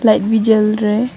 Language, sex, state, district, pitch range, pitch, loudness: Hindi, female, Arunachal Pradesh, Longding, 215-220 Hz, 220 Hz, -14 LUFS